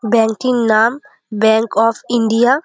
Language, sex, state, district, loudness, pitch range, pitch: Bengali, female, West Bengal, Jhargram, -14 LUFS, 220-240 Hz, 230 Hz